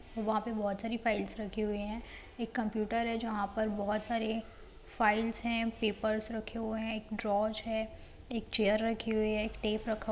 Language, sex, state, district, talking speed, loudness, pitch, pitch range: Hindi, female, Jharkhand, Jamtara, 200 wpm, -34 LUFS, 220 Hz, 215-225 Hz